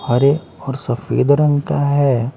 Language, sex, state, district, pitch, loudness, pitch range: Hindi, male, Bihar, Patna, 140 Hz, -16 LUFS, 130-145 Hz